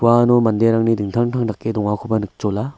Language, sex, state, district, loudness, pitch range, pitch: Garo, male, Meghalaya, West Garo Hills, -18 LUFS, 105-120 Hz, 115 Hz